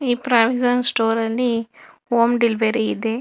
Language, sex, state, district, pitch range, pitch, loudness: Kannada, female, Karnataka, Bangalore, 225-245 Hz, 235 Hz, -19 LUFS